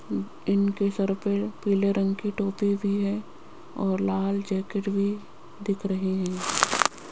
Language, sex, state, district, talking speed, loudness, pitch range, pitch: Hindi, female, Rajasthan, Jaipur, 135 wpm, -27 LUFS, 195-200 Hz, 200 Hz